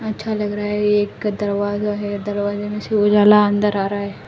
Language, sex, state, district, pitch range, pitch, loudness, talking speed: Hindi, female, Delhi, New Delhi, 205-210 Hz, 205 Hz, -18 LUFS, 210 wpm